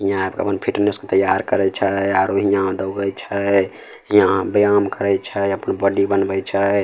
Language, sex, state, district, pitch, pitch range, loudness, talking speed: Maithili, male, Bihar, Samastipur, 100 Hz, 95-100 Hz, -18 LUFS, 185 wpm